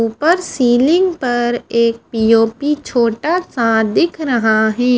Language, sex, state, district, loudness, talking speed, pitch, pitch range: Hindi, female, Haryana, Charkhi Dadri, -15 LUFS, 120 wpm, 240 Hz, 230-295 Hz